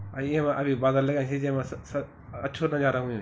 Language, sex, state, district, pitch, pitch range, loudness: Garhwali, male, Uttarakhand, Tehri Garhwal, 135 Hz, 125-140 Hz, -28 LUFS